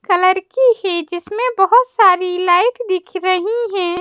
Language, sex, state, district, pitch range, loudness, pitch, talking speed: Hindi, female, Madhya Pradesh, Bhopal, 360-460 Hz, -15 LUFS, 380 Hz, 150 wpm